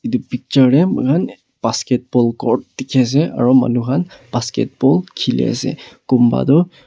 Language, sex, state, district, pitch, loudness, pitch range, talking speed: Nagamese, male, Nagaland, Kohima, 130 Hz, -16 LUFS, 120-140 Hz, 140 wpm